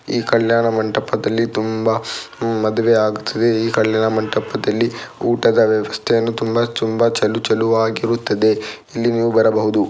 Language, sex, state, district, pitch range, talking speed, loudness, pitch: Kannada, male, Karnataka, Dakshina Kannada, 110-115 Hz, 90 wpm, -17 LUFS, 115 Hz